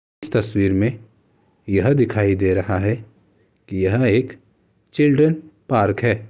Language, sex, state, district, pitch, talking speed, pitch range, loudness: Hindi, male, Uttar Pradesh, Ghazipur, 105 Hz, 135 wpm, 95-120 Hz, -19 LUFS